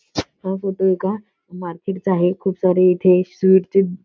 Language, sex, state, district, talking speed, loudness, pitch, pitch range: Marathi, female, Maharashtra, Solapur, 165 wpm, -18 LUFS, 190 Hz, 180-195 Hz